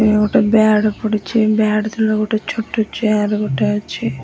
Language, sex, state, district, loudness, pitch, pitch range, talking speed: Odia, female, Odisha, Nuapada, -16 LUFS, 215 Hz, 210-220 Hz, 155 wpm